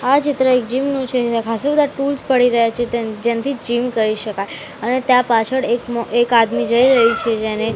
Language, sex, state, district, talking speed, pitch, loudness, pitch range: Gujarati, female, Gujarat, Gandhinagar, 215 wpm, 240 Hz, -17 LUFS, 230-260 Hz